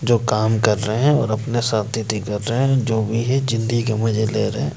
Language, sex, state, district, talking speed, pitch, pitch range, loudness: Hindi, male, Madhya Pradesh, Bhopal, 65 wpm, 110 Hz, 110-120 Hz, -19 LUFS